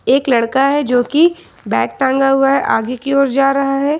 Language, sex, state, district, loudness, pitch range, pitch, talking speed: Hindi, female, Jharkhand, Ranchi, -14 LUFS, 265-275 Hz, 275 Hz, 225 wpm